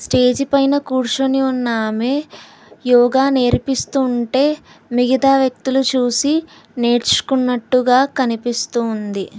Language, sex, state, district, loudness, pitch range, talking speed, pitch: Telugu, female, Telangana, Hyderabad, -16 LUFS, 240-270 Hz, 90 wpm, 255 Hz